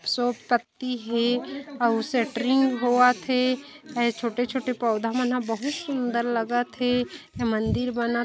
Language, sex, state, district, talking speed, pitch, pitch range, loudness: Hindi, female, Chhattisgarh, Kabirdham, 155 wpm, 245 Hz, 235-255 Hz, -25 LUFS